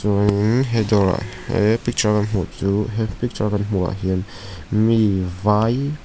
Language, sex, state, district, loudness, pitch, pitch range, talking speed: Mizo, male, Mizoram, Aizawl, -20 LUFS, 105 Hz, 95-110 Hz, 200 wpm